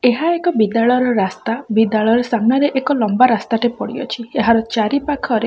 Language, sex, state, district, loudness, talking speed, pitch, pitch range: Odia, female, Odisha, Khordha, -16 LUFS, 165 wpm, 235 Hz, 225-260 Hz